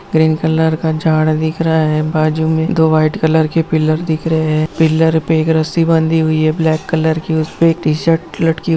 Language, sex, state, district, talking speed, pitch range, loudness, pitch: Hindi, female, Bihar, Jamui, 210 wpm, 155-160 Hz, -14 LUFS, 160 Hz